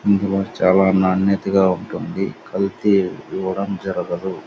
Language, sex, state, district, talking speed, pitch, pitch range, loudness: Telugu, male, Andhra Pradesh, Anantapur, 120 wpm, 95 Hz, 95-100 Hz, -19 LUFS